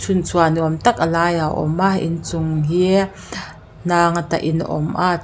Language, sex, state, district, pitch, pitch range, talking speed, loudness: Mizo, female, Mizoram, Aizawl, 165 Hz, 160-180 Hz, 195 wpm, -18 LUFS